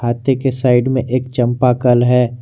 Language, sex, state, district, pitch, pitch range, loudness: Hindi, male, Jharkhand, Garhwa, 125 Hz, 120-130 Hz, -15 LUFS